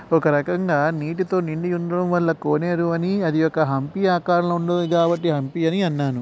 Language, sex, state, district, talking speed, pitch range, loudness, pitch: Telugu, male, Andhra Pradesh, Guntur, 175 wpm, 155-175 Hz, -21 LUFS, 170 Hz